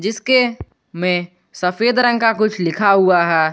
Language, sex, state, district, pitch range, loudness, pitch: Hindi, male, Jharkhand, Garhwa, 175-230 Hz, -16 LUFS, 195 Hz